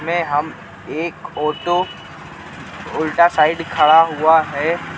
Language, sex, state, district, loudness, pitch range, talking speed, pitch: Hindi, male, Jharkhand, Ranchi, -17 LUFS, 155-170 Hz, 110 wpm, 160 Hz